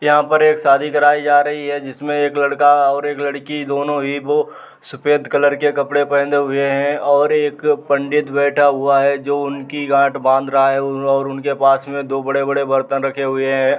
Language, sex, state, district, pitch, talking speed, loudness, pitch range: Hindi, male, Uttar Pradesh, Muzaffarnagar, 140 Hz, 200 wpm, -16 LUFS, 140-145 Hz